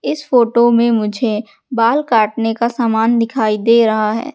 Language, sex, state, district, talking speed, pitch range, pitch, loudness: Hindi, female, Madhya Pradesh, Katni, 165 wpm, 220-235 Hz, 230 Hz, -14 LUFS